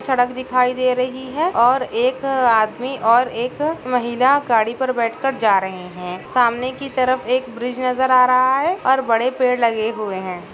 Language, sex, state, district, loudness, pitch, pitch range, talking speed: Hindi, female, Bihar, Darbhanga, -18 LUFS, 250 Hz, 230-260 Hz, 190 wpm